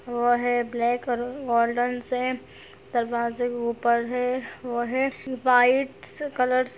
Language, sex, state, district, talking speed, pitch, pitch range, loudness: Hindi, female, Chhattisgarh, Sarguja, 135 wpm, 245 Hz, 240-255 Hz, -25 LUFS